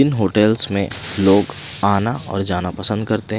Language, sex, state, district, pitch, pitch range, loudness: Hindi, male, Himachal Pradesh, Shimla, 100 Hz, 100-110 Hz, -18 LUFS